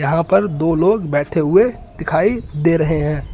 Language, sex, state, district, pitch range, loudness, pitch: Hindi, male, Uttar Pradesh, Lucknow, 150-190 Hz, -16 LUFS, 165 Hz